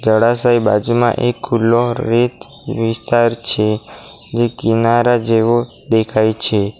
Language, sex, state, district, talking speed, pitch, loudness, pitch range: Gujarati, male, Gujarat, Valsad, 105 wpm, 115 Hz, -15 LUFS, 110-120 Hz